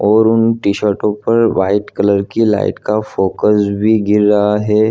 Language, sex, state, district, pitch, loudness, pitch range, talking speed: Hindi, male, Jharkhand, Jamtara, 105 Hz, -14 LUFS, 100-110 Hz, 185 wpm